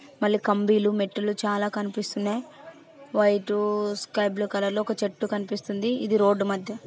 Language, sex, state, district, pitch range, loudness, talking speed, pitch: Telugu, female, Andhra Pradesh, Anantapur, 205-215 Hz, -26 LUFS, 150 wpm, 210 Hz